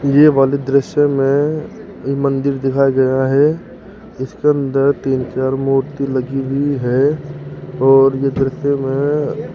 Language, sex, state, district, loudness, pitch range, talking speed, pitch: Hindi, male, Rajasthan, Jaipur, -16 LUFS, 135-140 Hz, 145 wpm, 135 Hz